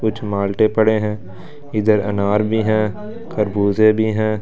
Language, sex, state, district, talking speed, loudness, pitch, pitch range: Hindi, male, Delhi, New Delhi, 150 wpm, -18 LUFS, 110 Hz, 105-110 Hz